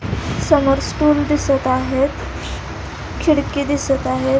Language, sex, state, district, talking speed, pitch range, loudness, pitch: Marathi, female, Maharashtra, Solapur, 95 wpm, 260-295 Hz, -18 LUFS, 280 Hz